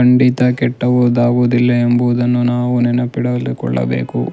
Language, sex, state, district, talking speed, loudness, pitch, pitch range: Kannada, male, Karnataka, Shimoga, 95 wpm, -14 LUFS, 120 Hz, 105-125 Hz